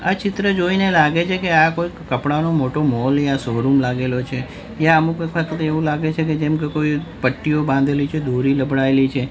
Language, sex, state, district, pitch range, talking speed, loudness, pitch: Gujarati, male, Gujarat, Gandhinagar, 135-165 Hz, 200 wpm, -18 LUFS, 150 Hz